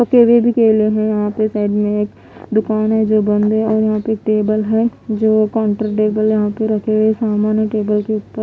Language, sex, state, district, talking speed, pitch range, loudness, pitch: Hindi, female, Odisha, Khordha, 230 wpm, 215-220 Hz, -15 LUFS, 215 Hz